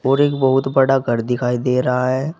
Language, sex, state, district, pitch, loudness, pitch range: Hindi, male, Uttar Pradesh, Saharanpur, 130 Hz, -17 LUFS, 125-135 Hz